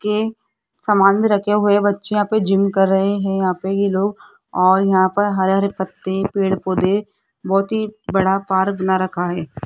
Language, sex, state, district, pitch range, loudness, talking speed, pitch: Hindi, female, Rajasthan, Jaipur, 190-205 Hz, -18 LUFS, 190 wpm, 195 Hz